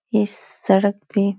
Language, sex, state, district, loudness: Hindi, female, Bihar, Supaul, -20 LUFS